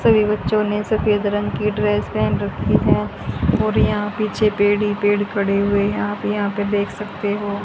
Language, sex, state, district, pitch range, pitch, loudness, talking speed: Hindi, female, Haryana, Charkhi Dadri, 205-210 Hz, 205 Hz, -19 LUFS, 195 wpm